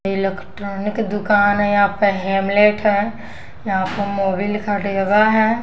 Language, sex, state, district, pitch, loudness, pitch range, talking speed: Hindi, female, Bihar, West Champaran, 205 Hz, -18 LUFS, 195-210 Hz, 105 wpm